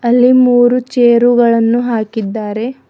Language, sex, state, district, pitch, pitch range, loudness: Kannada, female, Karnataka, Bidar, 240 Hz, 230-245 Hz, -11 LUFS